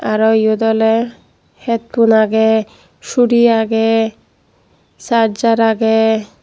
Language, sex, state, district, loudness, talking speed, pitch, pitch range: Chakma, female, Tripura, Dhalai, -14 LUFS, 95 wpm, 225 Hz, 220-230 Hz